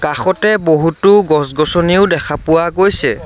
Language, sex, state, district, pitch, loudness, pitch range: Assamese, male, Assam, Sonitpur, 170 Hz, -12 LUFS, 155-195 Hz